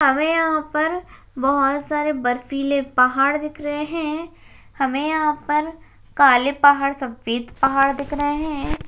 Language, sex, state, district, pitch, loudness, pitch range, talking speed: Hindi, female, Uttarakhand, Uttarkashi, 285 Hz, -20 LUFS, 275-300 Hz, 135 wpm